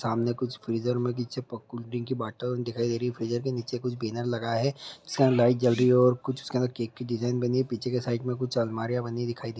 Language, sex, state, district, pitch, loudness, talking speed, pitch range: Hindi, male, Bihar, Madhepura, 120 Hz, -28 LUFS, 255 wpm, 120-125 Hz